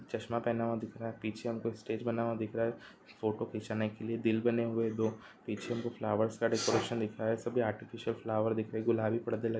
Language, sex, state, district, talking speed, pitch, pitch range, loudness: Hindi, male, Bihar, Jahanabad, 250 wpm, 115 Hz, 110-115 Hz, -35 LUFS